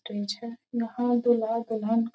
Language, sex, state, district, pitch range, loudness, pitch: Hindi, female, Bihar, Gopalganj, 225-240 Hz, -28 LUFS, 230 Hz